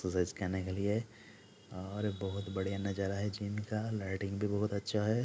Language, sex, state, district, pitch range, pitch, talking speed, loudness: Hindi, male, Jharkhand, Jamtara, 95-105 Hz, 100 Hz, 185 wpm, -37 LUFS